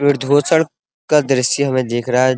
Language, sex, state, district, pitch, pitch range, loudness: Hindi, male, Uttar Pradesh, Muzaffarnagar, 135 Hz, 130-145 Hz, -16 LUFS